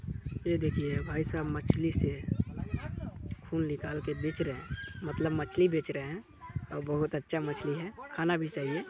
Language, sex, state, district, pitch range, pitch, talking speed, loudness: Hindi, male, Chhattisgarh, Balrampur, 145-160 Hz, 150 Hz, 170 wpm, -34 LUFS